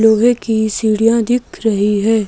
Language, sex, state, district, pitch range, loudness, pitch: Hindi, female, Himachal Pradesh, Shimla, 215-230 Hz, -14 LUFS, 220 Hz